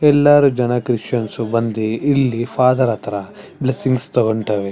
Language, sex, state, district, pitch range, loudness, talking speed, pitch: Kannada, male, Karnataka, Chamarajanagar, 110-130 Hz, -17 LUFS, 125 wpm, 120 Hz